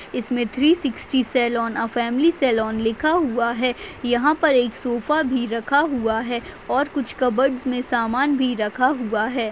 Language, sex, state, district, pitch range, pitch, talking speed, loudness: Hindi, female, Chhattisgarh, Bastar, 235-275 Hz, 250 Hz, 170 wpm, -21 LUFS